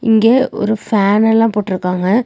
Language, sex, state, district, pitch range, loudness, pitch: Tamil, female, Tamil Nadu, Nilgiris, 200-225 Hz, -14 LUFS, 220 Hz